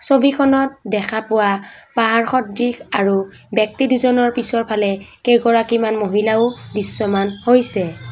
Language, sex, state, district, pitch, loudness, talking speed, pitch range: Assamese, female, Assam, Kamrup Metropolitan, 225 Hz, -17 LUFS, 95 wpm, 205-245 Hz